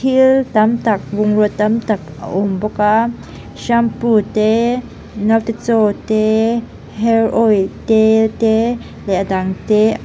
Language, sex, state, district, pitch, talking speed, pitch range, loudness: Mizo, female, Mizoram, Aizawl, 220 Hz, 135 wpm, 210-230 Hz, -15 LUFS